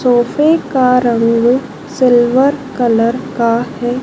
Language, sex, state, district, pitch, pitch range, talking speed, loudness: Hindi, female, Madhya Pradesh, Dhar, 245 Hz, 235-265 Hz, 105 wpm, -13 LUFS